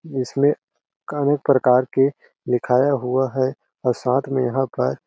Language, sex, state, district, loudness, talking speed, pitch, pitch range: Hindi, male, Chhattisgarh, Balrampur, -20 LUFS, 155 wpm, 130 Hz, 125-140 Hz